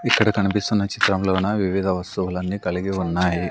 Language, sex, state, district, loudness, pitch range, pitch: Telugu, male, Andhra Pradesh, Sri Satya Sai, -21 LUFS, 90-100 Hz, 95 Hz